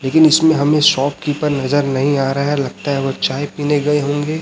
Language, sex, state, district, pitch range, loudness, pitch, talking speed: Hindi, male, Chhattisgarh, Raipur, 140-150 Hz, -16 LUFS, 145 Hz, 230 wpm